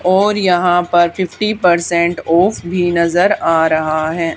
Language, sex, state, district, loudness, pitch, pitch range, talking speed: Hindi, female, Haryana, Charkhi Dadri, -14 LUFS, 175 Hz, 170-180 Hz, 150 wpm